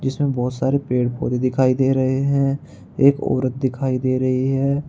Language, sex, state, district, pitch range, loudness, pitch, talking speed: Hindi, male, Uttar Pradesh, Saharanpur, 130-140 Hz, -20 LUFS, 130 Hz, 195 wpm